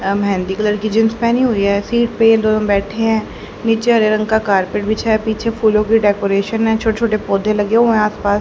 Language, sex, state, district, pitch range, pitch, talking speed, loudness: Hindi, female, Haryana, Charkhi Dadri, 205-225 Hz, 215 Hz, 235 wpm, -15 LUFS